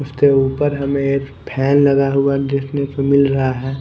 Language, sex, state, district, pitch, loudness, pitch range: Hindi, male, Punjab, Kapurthala, 140 Hz, -16 LUFS, 135-140 Hz